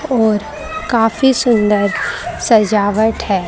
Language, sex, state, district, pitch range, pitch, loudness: Hindi, female, Haryana, Rohtak, 210-260 Hz, 225 Hz, -14 LUFS